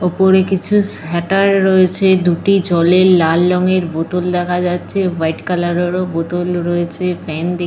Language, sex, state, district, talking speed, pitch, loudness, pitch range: Bengali, female, Jharkhand, Jamtara, 140 wpm, 180 Hz, -14 LUFS, 175-185 Hz